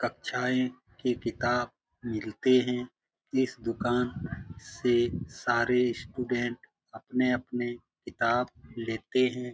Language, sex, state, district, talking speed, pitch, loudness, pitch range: Hindi, male, Bihar, Jamui, 90 wpm, 120 Hz, -30 LUFS, 120-125 Hz